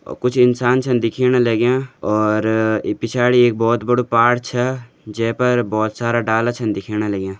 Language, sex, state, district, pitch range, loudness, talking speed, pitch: Garhwali, male, Uttarakhand, Uttarkashi, 110-125 Hz, -17 LUFS, 160 wpm, 120 Hz